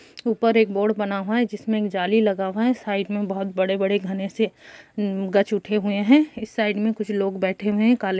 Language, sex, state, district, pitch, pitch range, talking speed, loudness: Hindi, male, Bihar, Gopalganj, 210 Hz, 195-225 Hz, 235 wpm, -22 LUFS